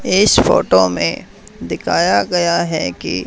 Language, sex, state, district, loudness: Hindi, male, Haryana, Charkhi Dadri, -15 LUFS